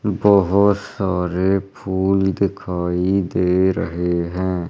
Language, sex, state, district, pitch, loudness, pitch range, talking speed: Hindi, male, Madhya Pradesh, Umaria, 95 Hz, -19 LUFS, 90-100 Hz, 90 wpm